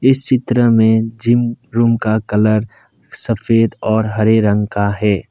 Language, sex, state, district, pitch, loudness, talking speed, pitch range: Hindi, male, Assam, Kamrup Metropolitan, 110 Hz, -15 LUFS, 145 wpm, 110-115 Hz